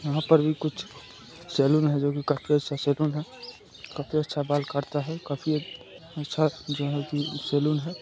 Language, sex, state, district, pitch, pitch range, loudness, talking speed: Hindi, male, Bihar, Jamui, 150 Hz, 145-155 Hz, -27 LUFS, 150 wpm